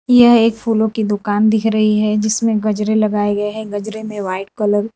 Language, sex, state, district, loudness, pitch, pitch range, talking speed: Hindi, female, Gujarat, Valsad, -16 LUFS, 215 Hz, 205-220 Hz, 220 wpm